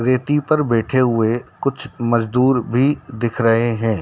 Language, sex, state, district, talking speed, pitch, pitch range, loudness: Hindi, male, Madhya Pradesh, Dhar, 150 wpm, 120 Hz, 115-135 Hz, -18 LUFS